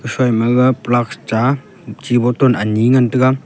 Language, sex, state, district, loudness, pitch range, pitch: Wancho, male, Arunachal Pradesh, Longding, -15 LUFS, 120-130 Hz, 125 Hz